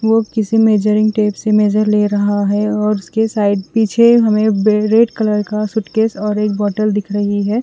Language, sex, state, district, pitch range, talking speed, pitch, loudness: Hindi, female, Chandigarh, Chandigarh, 210-220 Hz, 165 wpm, 210 Hz, -14 LUFS